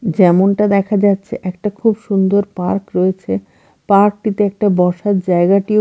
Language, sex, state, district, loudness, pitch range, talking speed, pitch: Bengali, female, Bihar, Katihar, -15 LUFS, 185-205 Hz, 135 wpm, 200 Hz